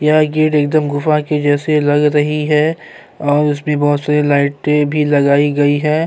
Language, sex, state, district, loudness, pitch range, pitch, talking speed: Urdu, male, Bihar, Saharsa, -14 LUFS, 145-150 Hz, 150 Hz, 170 wpm